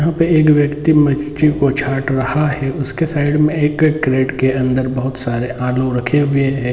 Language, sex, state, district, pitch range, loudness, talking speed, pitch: Hindi, male, Bihar, Muzaffarpur, 130-150 Hz, -15 LUFS, 205 wpm, 140 Hz